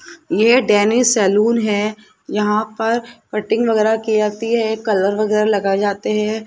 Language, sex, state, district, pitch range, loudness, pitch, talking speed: Hindi, male, Rajasthan, Jaipur, 210-225 Hz, -17 LUFS, 215 Hz, 150 wpm